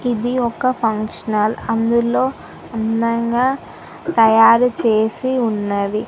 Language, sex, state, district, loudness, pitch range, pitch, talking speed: Telugu, female, Telangana, Mahabubabad, -17 LUFS, 220-245 Hz, 230 Hz, 80 wpm